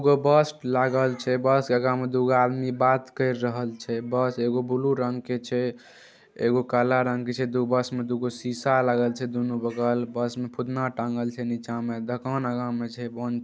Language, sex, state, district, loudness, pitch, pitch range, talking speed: Maithili, male, Bihar, Saharsa, -25 LUFS, 125 Hz, 120-130 Hz, 200 wpm